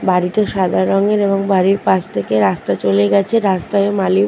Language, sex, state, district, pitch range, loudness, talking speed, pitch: Bengali, female, West Bengal, Purulia, 180-200 Hz, -15 LUFS, 170 wpm, 190 Hz